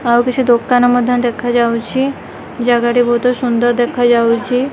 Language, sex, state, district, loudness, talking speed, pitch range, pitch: Odia, female, Odisha, Khordha, -14 LUFS, 125 wpm, 240-245 Hz, 240 Hz